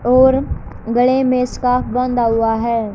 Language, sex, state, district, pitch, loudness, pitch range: Hindi, male, Haryana, Charkhi Dadri, 250 Hz, -16 LUFS, 230-255 Hz